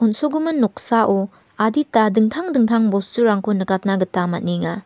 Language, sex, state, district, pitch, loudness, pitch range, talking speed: Garo, female, Meghalaya, West Garo Hills, 215 Hz, -18 LUFS, 195-230 Hz, 110 wpm